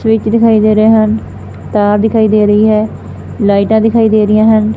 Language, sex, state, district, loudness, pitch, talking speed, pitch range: Punjabi, female, Punjab, Fazilka, -10 LUFS, 215 Hz, 190 wpm, 215-220 Hz